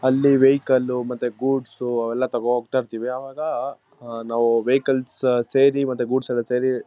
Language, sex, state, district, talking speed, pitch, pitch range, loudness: Kannada, male, Karnataka, Mysore, 150 wpm, 125 Hz, 120-135 Hz, -21 LUFS